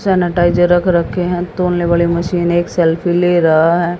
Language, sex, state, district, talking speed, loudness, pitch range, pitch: Hindi, female, Haryana, Jhajjar, 180 wpm, -14 LUFS, 170-175 Hz, 175 Hz